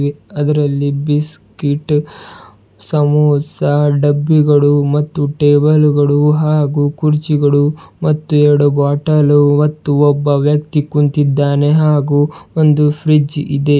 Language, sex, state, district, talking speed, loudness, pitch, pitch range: Kannada, male, Karnataka, Bidar, 85 wpm, -13 LUFS, 145 Hz, 145-150 Hz